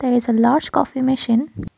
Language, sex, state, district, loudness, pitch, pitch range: English, female, Assam, Kamrup Metropolitan, -18 LUFS, 250 Hz, 235-260 Hz